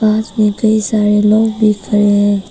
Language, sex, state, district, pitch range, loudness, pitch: Hindi, female, Arunachal Pradesh, Papum Pare, 210-220 Hz, -12 LUFS, 210 Hz